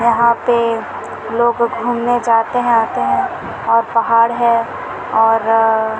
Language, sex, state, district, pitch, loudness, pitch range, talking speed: Hindi, female, Chhattisgarh, Bilaspur, 230 Hz, -15 LUFS, 225-235 Hz, 120 wpm